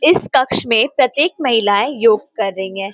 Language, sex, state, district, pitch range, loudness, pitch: Hindi, female, Uttar Pradesh, Varanasi, 200-295 Hz, -15 LUFS, 235 Hz